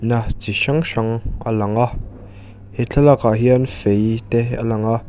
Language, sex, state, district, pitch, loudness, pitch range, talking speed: Mizo, male, Mizoram, Aizawl, 115 Hz, -18 LUFS, 105-120 Hz, 165 wpm